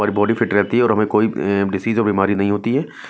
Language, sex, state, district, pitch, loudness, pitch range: Hindi, male, Chhattisgarh, Raipur, 105 Hz, -18 LUFS, 100-115 Hz